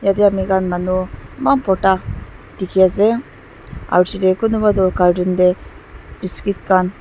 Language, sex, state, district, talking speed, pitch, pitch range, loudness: Nagamese, female, Nagaland, Dimapur, 135 wpm, 190 Hz, 185-200 Hz, -16 LUFS